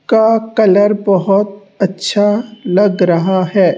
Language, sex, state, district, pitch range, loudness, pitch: Hindi, female, Rajasthan, Jaipur, 190-215 Hz, -13 LUFS, 200 Hz